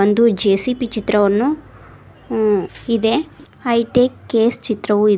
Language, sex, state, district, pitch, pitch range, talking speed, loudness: Kannada, female, Karnataka, Koppal, 225 Hz, 210-245 Hz, 105 wpm, -17 LUFS